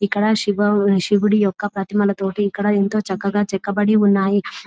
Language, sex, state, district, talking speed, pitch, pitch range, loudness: Telugu, female, Telangana, Nalgonda, 130 wpm, 205 Hz, 200-205 Hz, -18 LUFS